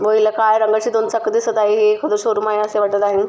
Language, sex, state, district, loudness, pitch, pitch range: Marathi, female, Maharashtra, Chandrapur, -16 LUFS, 215 Hz, 210-220 Hz